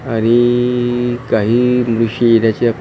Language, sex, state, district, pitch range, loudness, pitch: Marathi, male, Maharashtra, Gondia, 115-120 Hz, -14 LUFS, 120 Hz